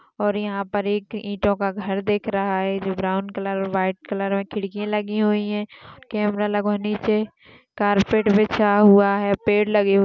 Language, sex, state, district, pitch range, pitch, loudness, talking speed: Hindi, female, Maharashtra, Sindhudurg, 195-210 Hz, 205 Hz, -21 LUFS, 180 wpm